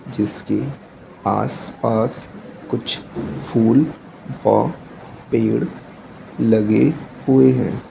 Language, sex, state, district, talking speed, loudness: Hindi, male, Uttar Pradesh, Etah, 70 wpm, -19 LUFS